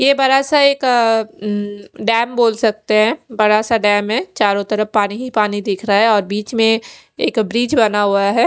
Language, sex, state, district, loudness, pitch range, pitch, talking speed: Hindi, female, Odisha, Khordha, -15 LUFS, 205-235 Hz, 220 Hz, 205 wpm